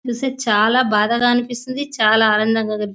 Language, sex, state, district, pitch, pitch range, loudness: Telugu, female, Telangana, Nalgonda, 230 Hz, 215-250 Hz, -17 LUFS